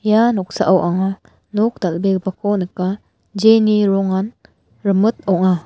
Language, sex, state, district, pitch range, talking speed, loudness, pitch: Garo, female, Meghalaya, West Garo Hills, 190-215 Hz, 105 wpm, -17 LUFS, 195 Hz